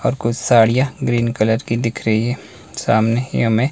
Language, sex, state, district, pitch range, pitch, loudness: Hindi, male, Himachal Pradesh, Shimla, 110-125 Hz, 115 Hz, -17 LUFS